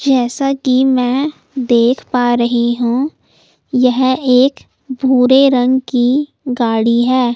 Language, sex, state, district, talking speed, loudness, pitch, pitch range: Hindi, female, Delhi, New Delhi, 115 wpm, -14 LUFS, 255 Hz, 245-265 Hz